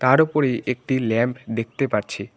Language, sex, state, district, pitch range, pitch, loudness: Bengali, male, West Bengal, Cooch Behar, 120-135 Hz, 125 Hz, -22 LUFS